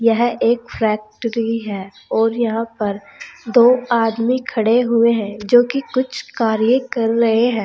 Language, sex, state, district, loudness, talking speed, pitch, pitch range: Hindi, female, Uttar Pradesh, Saharanpur, -17 LUFS, 150 wpm, 230 Hz, 220-240 Hz